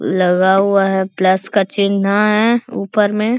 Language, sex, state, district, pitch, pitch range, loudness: Hindi, male, Bihar, Bhagalpur, 200 Hz, 190-210 Hz, -15 LUFS